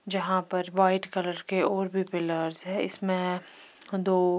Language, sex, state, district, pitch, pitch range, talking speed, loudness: Hindi, female, Chandigarh, Chandigarh, 185 Hz, 180-195 Hz, 150 wpm, -24 LUFS